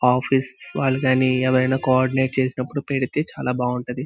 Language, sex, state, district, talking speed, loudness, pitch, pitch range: Telugu, male, Andhra Pradesh, Visakhapatnam, 135 wpm, -21 LUFS, 130 Hz, 125-130 Hz